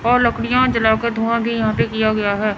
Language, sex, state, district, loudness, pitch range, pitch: Hindi, female, Chandigarh, Chandigarh, -17 LUFS, 215-235 Hz, 225 Hz